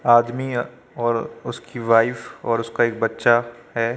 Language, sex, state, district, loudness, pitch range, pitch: Hindi, male, Uttar Pradesh, Jyotiba Phule Nagar, -21 LUFS, 115-120 Hz, 120 Hz